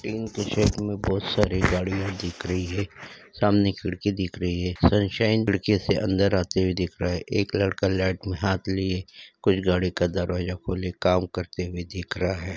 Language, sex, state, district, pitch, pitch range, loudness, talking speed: Hindi, male, Uttarakhand, Uttarkashi, 95 Hz, 90-100 Hz, -25 LUFS, 195 wpm